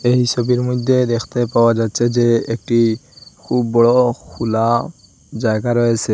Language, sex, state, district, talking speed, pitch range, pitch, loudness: Bengali, male, Assam, Hailakandi, 135 wpm, 115-125 Hz, 120 Hz, -16 LUFS